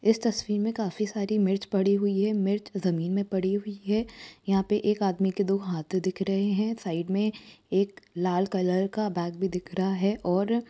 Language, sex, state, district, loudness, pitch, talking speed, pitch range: Hindi, male, Uttar Pradesh, Jyotiba Phule Nagar, -28 LUFS, 195 Hz, 215 wpm, 190-210 Hz